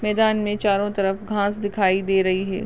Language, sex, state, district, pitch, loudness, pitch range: Hindi, female, Maharashtra, Chandrapur, 205 Hz, -21 LUFS, 195-210 Hz